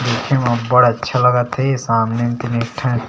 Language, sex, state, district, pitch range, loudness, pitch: Chhattisgarhi, male, Chhattisgarh, Sarguja, 115-125 Hz, -16 LUFS, 120 Hz